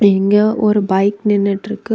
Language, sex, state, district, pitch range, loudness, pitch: Tamil, female, Tamil Nadu, Kanyakumari, 200-215 Hz, -15 LUFS, 205 Hz